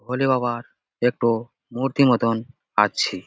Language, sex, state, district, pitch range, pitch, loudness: Bengali, male, West Bengal, Jalpaiguri, 115-130 Hz, 120 Hz, -22 LUFS